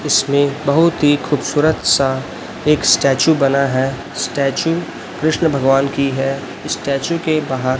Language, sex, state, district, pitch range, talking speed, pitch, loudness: Hindi, male, Chhattisgarh, Raipur, 135-155 Hz, 130 wpm, 140 Hz, -16 LUFS